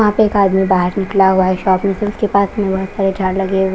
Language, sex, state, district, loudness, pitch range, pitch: Hindi, female, Punjab, Kapurthala, -15 LUFS, 190-200 Hz, 195 Hz